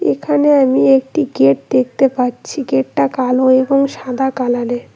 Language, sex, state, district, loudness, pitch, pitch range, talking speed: Bengali, female, West Bengal, Cooch Behar, -14 LUFS, 260 Hz, 245-275 Hz, 135 wpm